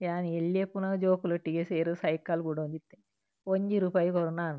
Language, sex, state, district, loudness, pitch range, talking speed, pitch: Tulu, female, Karnataka, Dakshina Kannada, -30 LUFS, 160-185 Hz, 155 wpm, 170 Hz